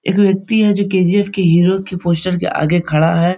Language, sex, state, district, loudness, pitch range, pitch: Hindi, male, Bihar, Supaul, -14 LUFS, 170-195 Hz, 185 Hz